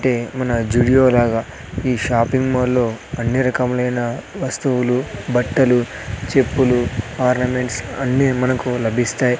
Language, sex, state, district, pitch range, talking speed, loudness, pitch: Telugu, male, Andhra Pradesh, Sri Satya Sai, 120-130 Hz, 100 wpm, -18 LUFS, 125 Hz